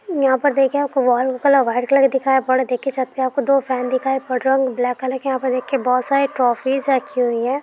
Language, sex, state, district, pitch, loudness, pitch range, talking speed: Hindi, female, Andhra Pradesh, Guntur, 265 Hz, -18 LUFS, 255-275 Hz, 190 wpm